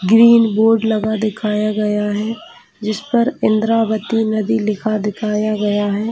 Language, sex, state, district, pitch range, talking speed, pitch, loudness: Hindi, female, Chhattisgarh, Bastar, 210-225 Hz, 135 wpm, 215 Hz, -16 LUFS